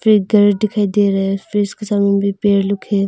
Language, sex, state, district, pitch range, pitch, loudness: Hindi, female, Arunachal Pradesh, Longding, 200-210 Hz, 205 Hz, -15 LUFS